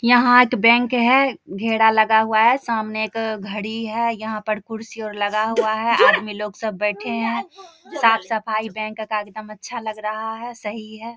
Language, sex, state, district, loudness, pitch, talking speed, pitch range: Hindi, female, Bihar, Samastipur, -20 LUFS, 220 Hz, 190 wpm, 215-235 Hz